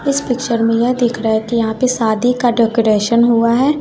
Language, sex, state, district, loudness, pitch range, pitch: Hindi, female, Bihar, West Champaran, -14 LUFS, 230-250 Hz, 235 Hz